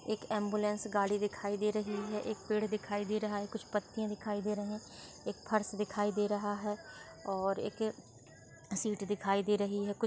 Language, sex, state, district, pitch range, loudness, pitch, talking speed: Hindi, female, Rajasthan, Churu, 205-215 Hz, -36 LUFS, 210 Hz, 190 wpm